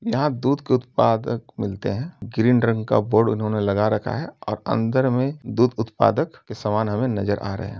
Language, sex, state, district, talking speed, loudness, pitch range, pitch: Hindi, male, Uttar Pradesh, Jyotiba Phule Nagar, 200 wpm, -22 LUFS, 105-125 Hz, 115 Hz